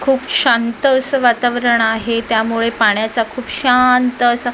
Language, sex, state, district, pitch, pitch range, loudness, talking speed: Marathi, female, Maharashtra, Mumbai Suburban, 240 Hz, 230-250 Hz, -15 LUFS, 130 wpm